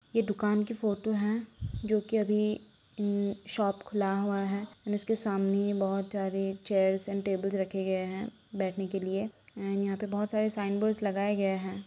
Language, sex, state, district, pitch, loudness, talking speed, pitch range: Hindi, female, Bihar, Saran, 200 Hz, -31 LUFS, 185 wpm, 195-210 Hz